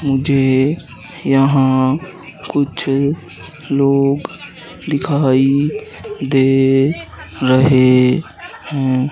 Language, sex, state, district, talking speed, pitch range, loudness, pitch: Hindi, male, Madhya Pradesh, Katni, 55 wpm, 130-145 Hz, -15 LUFS, 135 Hz